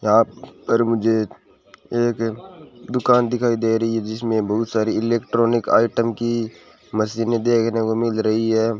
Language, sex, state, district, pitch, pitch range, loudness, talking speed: Hindi, male, Rajasthan, Bikaner, 115 Hz, 110-120 Hz, -20 LUFS, 145 wpm